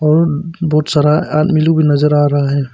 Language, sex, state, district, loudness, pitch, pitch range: Hindi, male, Arunachal Pradesh, Papum Pare, -13 LUFS, 150 Hz, 145-160 Hz